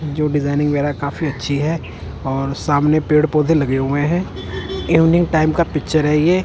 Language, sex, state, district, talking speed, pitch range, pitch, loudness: Hindi, male, Punjab, Kapurthala, 175 wpm, 140-155 Hz, 150 Hz, -17 LUFS